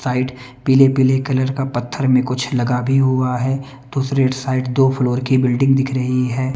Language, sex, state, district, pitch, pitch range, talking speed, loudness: Hindi, male, Bihar, West Champaran, 130 Hz, 125-135 Hz, 190 wpm, -17 LUFS